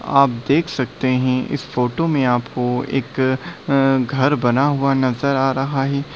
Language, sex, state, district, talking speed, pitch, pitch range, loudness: Hindi, male, Bihar, Bhagalpur, 155 wpm, 135 Hz, 125-140 Hz, -19 LUFS